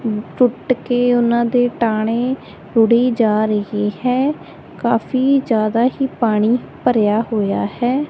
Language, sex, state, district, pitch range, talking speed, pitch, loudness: Punjabi, female, Punjab, Kapurthala, 215-250 Hz, 120 wpm, 235 Hz, -17 LUFS